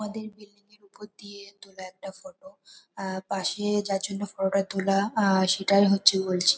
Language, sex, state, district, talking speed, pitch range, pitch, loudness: Bengali, female, West Bengal, North 24 Parganas, 175 wpm, 195-210 Hz, 200 Hz, -25 LUFS